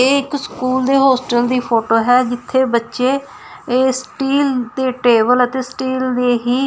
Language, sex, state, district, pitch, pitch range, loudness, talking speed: Punjabi, female, Punjab, Fazilka, 255 Hz, 245-260 Hz, -16 LUFS, 160 wpm